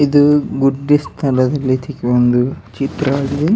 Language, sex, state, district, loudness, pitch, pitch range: Kannada, male, Karnataka, Dakshina Kannada, -16 LUFS, 140 Hz, 130-145 Hz